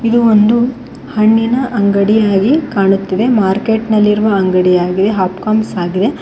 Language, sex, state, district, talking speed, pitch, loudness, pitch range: Kannada, female, Karnataka, Koppal, 115 wpm, 210 Hz, -12 LUFS, 195-225 Hz